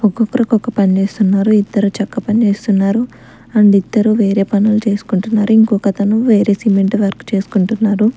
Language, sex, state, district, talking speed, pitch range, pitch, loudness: Telugu, female, Andhra Pradesh, Sri Satya Sai, 140 wpm, 200-220 Hz, 210 Hz, -13 LUFS